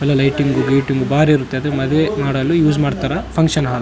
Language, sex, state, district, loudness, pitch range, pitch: Kannada, male, Karnataka, Raichur, -16 LUFS, 135-150 Hz, 140 Hz